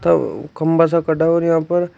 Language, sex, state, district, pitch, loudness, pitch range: Hindi, male, Uttar Pradesh, Shamli, 165 Hz, -17 LUFS, 160-170 Hz